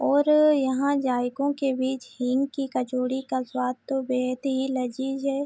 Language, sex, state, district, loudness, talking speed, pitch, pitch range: Hindi, female, Bihar, Araria, -25 LUFS, 165 wpm, 265 Hz, 255-275 Hz